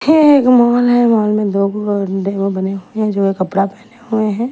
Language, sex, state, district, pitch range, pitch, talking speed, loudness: Hindi, female, Delhi, New Delhi, 195-240 Hz, 210 Hz, 210 wpm, -14 LUFS